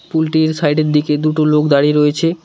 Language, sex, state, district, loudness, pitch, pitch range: Bengali, male, West Bengal, Cooch Behar, -14 LUFS, 155 Hz, 150-160 Hz